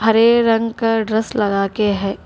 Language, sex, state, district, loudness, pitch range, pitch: Hindi, female, Telangana, Hyderabad, -16 LUFS, 205-225 Hz, 220 Hz